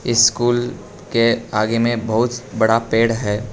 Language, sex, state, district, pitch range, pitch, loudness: Hindi, male, Arunachal Pradesh, Lower Dibang Valley, 110-120 Hz, 115 Hz, -18 LUFS